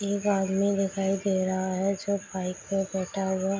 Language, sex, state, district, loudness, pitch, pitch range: Hindi, female, Bihar, Darbhanga, -28 LUFS, 195 Hz, 190-200 Hz